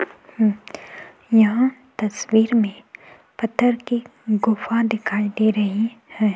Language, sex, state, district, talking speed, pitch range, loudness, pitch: Hindi, female, Goa, North and South Goa, 105 wpm, 215-235 Hz, -21 LUFS, 225 Hz